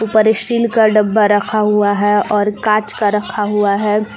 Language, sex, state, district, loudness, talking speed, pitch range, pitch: Hindi, female, Jharkhand, Palamu, -14 LUFS, 185 wpm, 205-215 Hz, 210 Hz